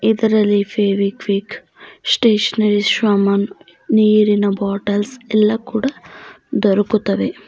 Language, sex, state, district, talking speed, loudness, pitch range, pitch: Kannada, female, Karnataka, Bidar, 70 wpm, -16 LUFS, 200-220 Hz, 210 Hz